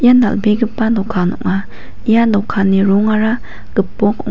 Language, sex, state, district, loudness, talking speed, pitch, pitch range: Garo, female, Meghalaya, West Garo Hills, -15 LUFS, 110 wpm, 215 Hz, 195-225 Hz